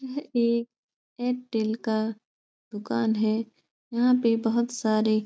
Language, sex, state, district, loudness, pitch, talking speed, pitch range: Hindi, female, Uttar Pradesh, Etah, -26 LUFS, 230 Hz, 125 wpm, 220-245 Hz